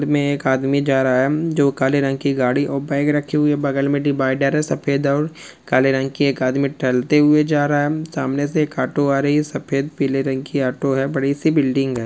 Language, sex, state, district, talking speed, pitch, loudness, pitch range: Hindi, male, Rajasthan, Churu, 245 wpm, 140 Hz, -19 LUFS, 135-145 Hz